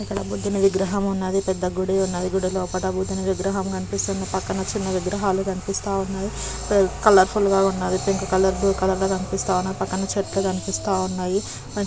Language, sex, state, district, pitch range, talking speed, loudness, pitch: Telugu, female, Telangana, Karimnagar, 185-195 Hz, 160 wpm, -22 LUFS, 190 Hz